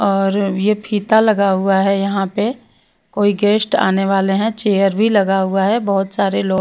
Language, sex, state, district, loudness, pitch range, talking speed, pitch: Hindi, female, Bihar, West Champaran, -16 LUFS, 195-210 Hz, 190 wpm, 200 Hz